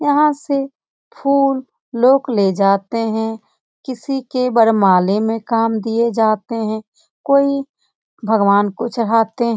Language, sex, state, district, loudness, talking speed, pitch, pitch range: Hindi, male, Bihar, Jamui, -16 LUFS, 125 wpm, 230 Hz, 220-270 Hz